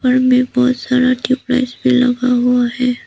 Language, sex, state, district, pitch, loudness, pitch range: Hindi, female, Arunachal Pradesh, Papum Pare, 255 Hz, -14 LUFS, 250-255 Hz